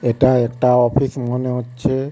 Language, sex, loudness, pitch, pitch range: Bengali, male, -17 LUFS, 125 Hz, 120-130 Hz